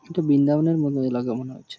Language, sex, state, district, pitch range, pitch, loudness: Bengali, male, West Bengal, Purulia, 130-155 Hz, 140 Hz, -22 LUFS